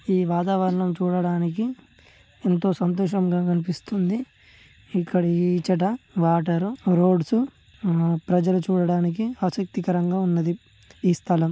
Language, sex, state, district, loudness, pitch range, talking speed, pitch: Telugu, male, Telangana, Nalgonda, -23 LUFS, 175-190 Hz, 90 wpm, 180 Hz